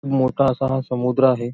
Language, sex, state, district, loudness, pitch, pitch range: Marathi, male, Maharashtra, Nagpur, -20 LUFS, 130 Hz, 125-135 Hz